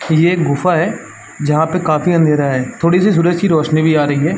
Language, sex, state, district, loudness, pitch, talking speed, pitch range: Hindi, male, Uttar Pradesh, Varanasi, -14 LUFS, 160 Hz, 245 wpm, 150-175 Hz